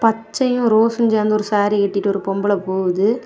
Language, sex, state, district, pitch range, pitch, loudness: Tamil, female, Tamil Nadu, Kanyakumari, 200-225 Hz, 215 Hz, -18 LUFS